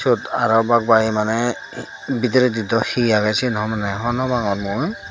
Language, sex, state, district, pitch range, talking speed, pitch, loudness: Chakma, female, Tripura, Dhalai, 105-120 Hz, 140 wpm, 115 Hz, -19 LUFS